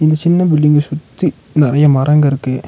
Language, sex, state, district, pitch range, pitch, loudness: Tamil, male, Tamil Nadu, Nilgiris, 140-155 Hz, 150 Hz, -13 LUFS